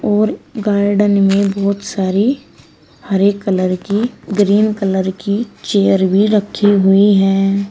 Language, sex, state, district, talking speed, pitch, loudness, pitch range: Hindi, female, Uttar Pradesh, Shamli, 125 wpm, 200 Hz, -14 LUFS, 195-210 Hz